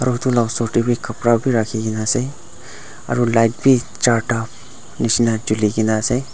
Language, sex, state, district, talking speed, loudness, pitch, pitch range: Nagamese, male, Nagaland, Dimapur, 160 wpm, -18 LUFS, 120 Hz, 110-125 Hz